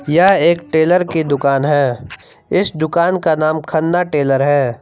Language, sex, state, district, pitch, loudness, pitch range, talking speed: Hindi, male, Jharkhand, Palamu, 155 Hz, -15 LUFS, 140-170 Hz, 160 wpm